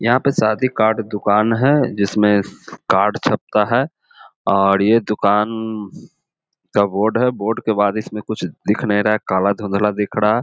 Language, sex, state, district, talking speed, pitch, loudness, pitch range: Hindi, male, Bihar, Jamui, 170 wpm, 105 Hz, -17 LUFS, 100-110 Hz